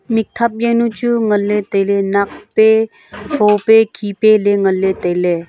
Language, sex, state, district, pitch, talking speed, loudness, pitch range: Wancho, female, Arunachal Pradesh, Longding, 210 Hz, 175 wpm, -14 LUFS, 200-225 Hz